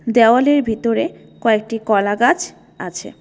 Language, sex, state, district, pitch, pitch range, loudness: Bengali, female, West Bengal, Alipurduar, 230 Hz, 220-245 Hz, -16 LUFS